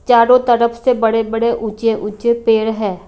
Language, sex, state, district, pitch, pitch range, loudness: Hindi, female, Haryana, Rohtak, 230 Hz, 220-235 Hz, -15 LUFS